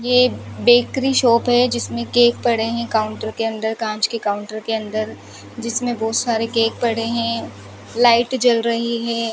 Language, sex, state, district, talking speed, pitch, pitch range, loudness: Hindi, female, Rajasthan, Bikaner, 165 wpm, 235 Hz, 225-240 Hz, -19 LUFS